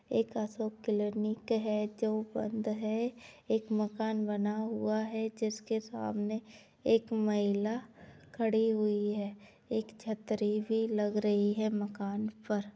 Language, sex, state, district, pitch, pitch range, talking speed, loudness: Hindi, female, Uttar Pradesh, Budaun, 215 Hz, 210-220 Hz, 130 wpm, -33 LUFS